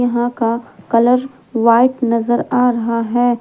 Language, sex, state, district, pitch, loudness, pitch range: Hindi, female, Jharkhand, Palamu, 240 Hz, -16 LUFS, 230-245 Hz